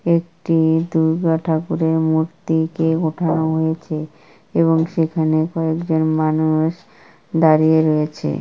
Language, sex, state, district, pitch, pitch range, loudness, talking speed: Bengali, female, West Bengal, Kolkata, 160 Hz, 160-165 Hz, -18 LUFS, 95 wpm